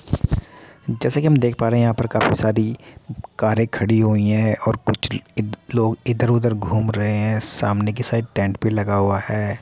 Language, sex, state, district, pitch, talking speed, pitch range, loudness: Hindi, male, Uttar Pradesh, Muzaffarnagar, 110 Hz, 195 wpm, 105-115 Hz, -20 LUFS